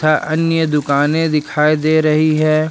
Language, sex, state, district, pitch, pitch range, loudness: Hindi, male, Jharkhand, Ranchi, 155 Hz, 150-155 Hz, -15 LUFS